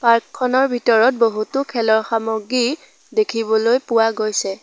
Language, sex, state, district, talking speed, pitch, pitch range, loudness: Assamese, female, Assam, Sonitpur, 115 wpm, 230 Hz, 220-250 Hz, -18 LUFS